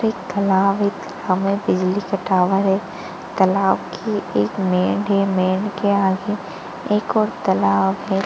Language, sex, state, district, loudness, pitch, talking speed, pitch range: Hindi, female, Chhattisgarh, Sarguja, -19 LUFS, 195 Hz, 225 wpm, 190-200 Hz